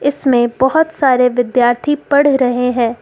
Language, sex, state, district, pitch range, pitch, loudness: Hindi, female, Jharkhand, Ranchi, 245-285 Hz, 255 Hz, -13 LUFS